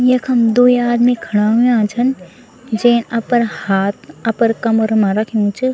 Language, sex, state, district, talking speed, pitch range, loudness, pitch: Garhwali, female, Uttarakhand, Tehri Garhwal, 145 wpm, 220-245 Hz, -15 LUFS, 230 Hz